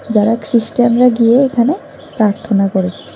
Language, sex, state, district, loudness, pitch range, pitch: Bengali, female, Tripura, West Tripura, -13 LUFS, 210-250 Hz, 235 Hz